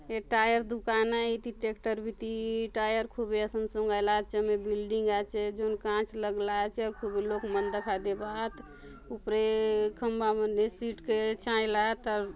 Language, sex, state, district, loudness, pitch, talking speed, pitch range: Halbi, female, Chhattisgarh, Bastar, -31 LUFS, 215 Hz, 175 wpm, 210-225 Hz